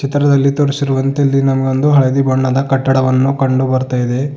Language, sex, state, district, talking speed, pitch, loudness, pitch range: Kannada, male, Karnataka, Bidar, 150 wpm, 135 Hz, -13 LUFS, 130-140 Hz